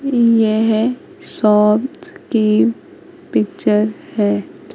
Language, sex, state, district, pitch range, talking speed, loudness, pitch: Hindi, female, Madhya Pradesh, Katni, 210-260 Hz, 65 wpm, -16 LUFS, 220 Hz